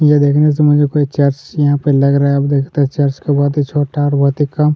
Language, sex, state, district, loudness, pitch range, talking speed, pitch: Hindi, male, Chhattisgarh, Kabirdham, -13 LUFS, 140-145 Hz, 290 wpm, 145 Hz